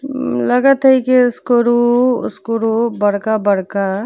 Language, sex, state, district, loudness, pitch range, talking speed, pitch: Bhojpuri, female, Uttar Pradesh, Deoria, -14 LUFS, 205-250 Hz, 150 wpm, 235 Hz